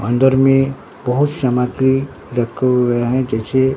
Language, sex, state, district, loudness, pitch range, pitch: Hindi, male, Bihar, Katihar, -16 LUFS, 125-135 Hz, 130 Hz